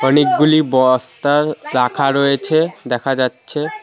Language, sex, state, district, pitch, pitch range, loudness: Bengali, male, West Bengal, Alipurduar, 140 Hz, 130-150 Hz, -16 LUFS